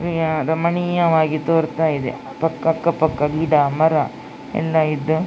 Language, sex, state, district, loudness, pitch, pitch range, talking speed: Kannada, female, Karnataka, Dakshina Kannada, -19 LUFS, 160 Hz, 155-165 Hz, 150 wpm